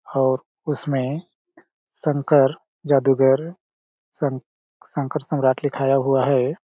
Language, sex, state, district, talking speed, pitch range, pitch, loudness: Hindi, male, Chhattisgarh, Balrampur, 100 wpm, 135-150 Hz, 140 Hz, -21 LUFS